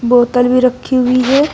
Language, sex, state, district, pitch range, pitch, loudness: Hindi, female, Uttar Pradesh, Shamli, 245-255 Hz, 255 Hz, -12 LUFS